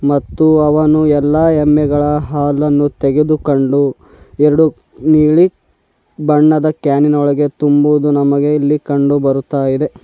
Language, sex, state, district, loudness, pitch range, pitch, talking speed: Kannada, male, Karnataka, Bidar, -13 LUFS, 140-150 Hz, 150 Hz, 95 wpm